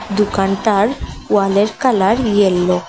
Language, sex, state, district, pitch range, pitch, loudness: Bengali, female, Assam, Hailakandi, 195-215 Hz, 200 Hz, -15 LUFS